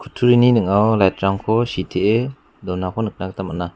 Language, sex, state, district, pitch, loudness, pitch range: Garo, male, Meghalaya, West Garo Hills, 100 Hz, -18 LUFS, 95-115 Hz